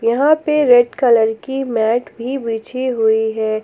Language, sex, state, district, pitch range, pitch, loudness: Hindi, female, Jharkhand, Palamu, 225-260 Hz, 240 Hz, -16 LUFS